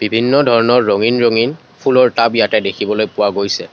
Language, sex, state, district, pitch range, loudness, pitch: Assamese, male, Assam, Kamrup Metropolitan, 110-125 Hz, -14 LUFS, 115 Hz